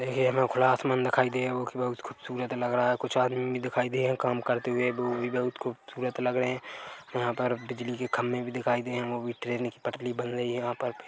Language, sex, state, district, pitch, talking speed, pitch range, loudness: Hindi, male, Chhattisgarh, Korba, 125 Hz, 245 wpm, 120-125 Hz, -29 LUFS